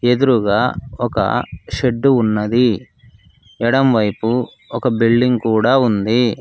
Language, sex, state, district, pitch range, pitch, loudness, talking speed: Telugu, male, Telangana, Mahabubabad, 110-125 Hz, 120 Hz, -16 LUFS, 95 wpm